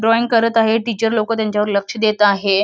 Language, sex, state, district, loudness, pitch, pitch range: Marathi, female, Maharashtra, Solapur, -16 LUFS, 220 Hz, 210-225 Hz